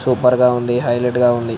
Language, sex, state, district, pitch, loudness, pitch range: Telugu, male, Andhra Pradesh, Anantapur, 125 Hz, -16 LUFS, 120-125 Hz